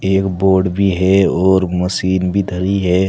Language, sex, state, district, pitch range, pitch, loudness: Hindi, male, Uttar Pradesh, Saharanpur, 90-95 Hz, 95 Hz, -15 LUFS